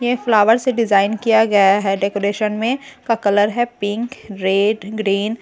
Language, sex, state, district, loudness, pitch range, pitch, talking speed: Hindi, female, Bihar, Katihar, -17 LUFS, 205-230 Hz, 215 Hz, 175 wpm